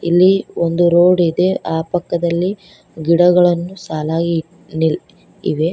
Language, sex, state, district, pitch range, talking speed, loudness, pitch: Kannada, female, Karnataka, Koppal, 165-180 Hz, 105 wpm, -16 LUFS, 170 Hz